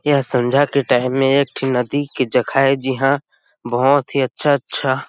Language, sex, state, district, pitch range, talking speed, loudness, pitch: Chhattisgarhi, male, Chhattisgarh, Sarguja, 130-140 Hz, 155 wpm, -17 LUFS, 135 Hz